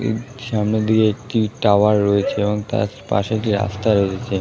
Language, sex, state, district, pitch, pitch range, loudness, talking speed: Bengali, male, West Bengal, Kolkata, 105 Hz, 100-110 Hz, -19 LUFS, 190 wpm